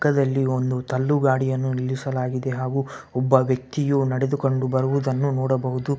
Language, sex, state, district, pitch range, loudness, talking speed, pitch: Kannada, male, Karnataka, Bellary, 130-135 Hz, -23 LUFS, 100 wpm, 130 Hz